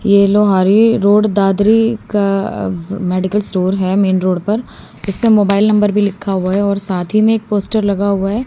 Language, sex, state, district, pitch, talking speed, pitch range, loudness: Hindi, female, Haryana, Charkhi Dadri, 200 Hz, 190 wpm, 195-210 Hz, -14 LUFS